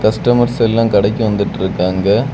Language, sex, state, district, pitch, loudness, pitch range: Tamil, male, Tamil Nadu, Kanyakumari, 110 Hz, -14 LUFS, 100-115 Hz